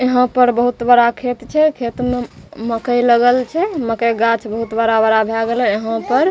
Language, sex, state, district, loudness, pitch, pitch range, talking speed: Maithili, female, Bihar, Begusarai, -16 LUFS, 240 Hz, 230-250 Hz, 200 wpm